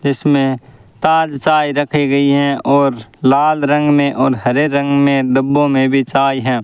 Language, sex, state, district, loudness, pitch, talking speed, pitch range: Hindi, male, Rajasthan, Bikaner, -14 LUFS, 140 Hz, 170 wpm, 135-145 Hz